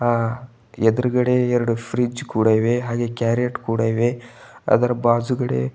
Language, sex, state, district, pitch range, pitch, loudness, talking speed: Kannada, male, Karnataka, Bidar, 115-125 Hz, 120 Hz, -20 LUFS, 135 wpm